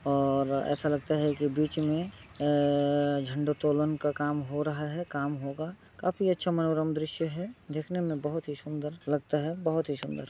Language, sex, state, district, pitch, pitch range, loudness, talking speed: Hindi, male, Bihar, Muzaffarpur, 150 Hz, 145-160 Hz, -30 LUFS, 180 wpm